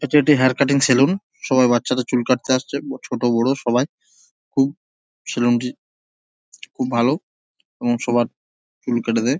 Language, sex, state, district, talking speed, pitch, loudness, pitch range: Bengali, male, West Bengal, Jhargram, 145 wpm, 125 Hz, -20 LUFS, 120-135 Hz